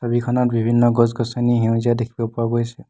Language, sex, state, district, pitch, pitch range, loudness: Assamese, male, Assam, Hailakandi, 120 Hz, 115-120 Hz, -19 LUFS